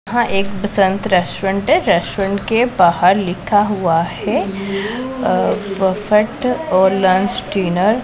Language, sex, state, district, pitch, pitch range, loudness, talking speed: Hindi, female, Punjab, Pathankot, 195 Hz, 190-210 Hz, -16 LUFS, 125 wpm